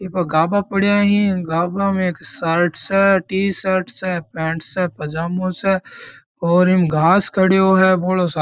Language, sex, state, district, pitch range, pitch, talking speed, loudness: Marwari, male, Rajasthan, Churu, 170-195 Hz, 185 Hz, 165 wpm, -17 LUFS